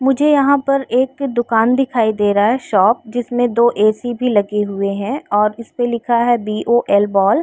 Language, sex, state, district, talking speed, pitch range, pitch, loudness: Hindi, female, Uttar Pradesh, Jyotiba Phule Nagar, 200 wpm, 210-255 Hz, 235 Hz, -16 LUFS